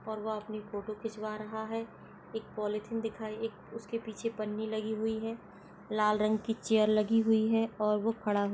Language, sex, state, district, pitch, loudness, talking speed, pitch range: Hindi, female, Bihar, Madhepura, 220 Hz, -33 LUFS, 205 wpm, 215-225 Hz